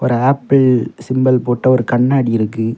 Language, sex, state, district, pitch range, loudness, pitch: Tamil, male, Tamil Nadu, Kanyakumari, 120-130 Hz, -14 LUFS, 125 Hz